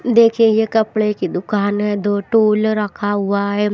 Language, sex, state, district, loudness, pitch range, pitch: Hindi, female, Maharashtra, Washim, -16 LUFS, 205-220 Hz, 210 Hz